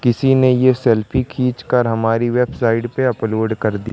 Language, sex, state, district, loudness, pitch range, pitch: Hindi, male, Madhya Pradesh, Katni, -17 LUFS, 115-130 Hz, 120 Hz